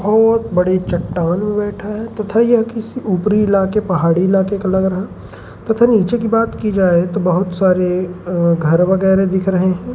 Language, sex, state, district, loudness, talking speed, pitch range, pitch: Hindi, male, Madhya Pradesh, Umaria, -15 LUFS, 185 wpm, 180-215 Hz, 190 Hz